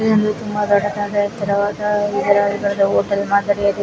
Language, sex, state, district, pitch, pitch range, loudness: Kannada, female, Karnataka, Dakshina Kannada, 205 Hz, 200-205 Hz, -18 LUFS